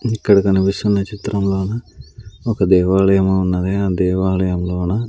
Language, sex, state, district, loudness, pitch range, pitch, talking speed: Telugu, male, Andhra Pradesh, Sri Satya Sai, -17 LUFS, 95-105 Hz, 95 Hz, 95 wpm